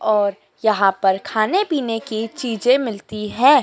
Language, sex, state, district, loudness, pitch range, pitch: Hindi, female, Madhya Pradesh, Dhar, -19 LUFS, 205-255 Hz, 220 Hz